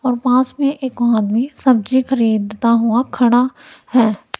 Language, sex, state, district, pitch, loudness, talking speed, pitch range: Hindi, female, Punjab, Kapurthala, 245 Hz, -16 LUFS, 125 wpm, 230-260 Hz